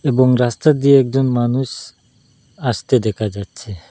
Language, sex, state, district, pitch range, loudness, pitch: Bengali, male, Assam, Hailakandi, 115-135 Hz, -16 LUFS, 125 Hz